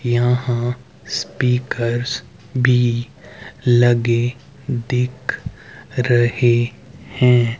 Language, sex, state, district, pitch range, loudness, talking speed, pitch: Hindi, male, Haryana, Rohtak, 120-125 Hz, -19 LUFS, 55 wpm, 120 Hz